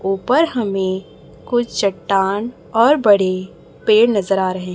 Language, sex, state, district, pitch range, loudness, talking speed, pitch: Hindi, female, Chhattisgarh, Raipur, 190-230 Hz, -17 LUFS, 125 wpm, 200 Hz